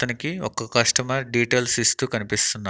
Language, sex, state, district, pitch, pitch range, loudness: Telugu, male, Andhra Pradesh, Annamaya, 120 Hz, 115-130 Hz, -21 LUFS